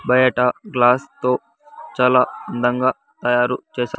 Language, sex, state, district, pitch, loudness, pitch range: Telugu, male, Andhra Pradesh, Sri Satya Sai, 125 Hz, -19 LUFS, 125-130 Hz